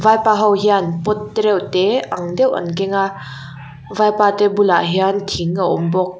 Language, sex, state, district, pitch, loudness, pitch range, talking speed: Mizo, female, Mizoram, Aizawl, 195 Hz, -16 LUFS, 175-210 Hz, 205 wpm